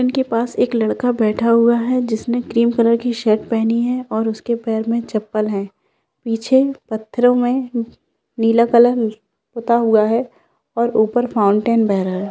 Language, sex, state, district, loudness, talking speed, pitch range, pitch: Hindi, female, Bihar, Kishanganj, -17 LUFS, 170 wpm, 220-240 Hz, 230 Hz